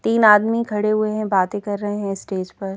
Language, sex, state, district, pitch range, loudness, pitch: Hindi, female, Madhya Pradesh, Bhopal, 195-215 Hz, -19 LUFS, 205 Hz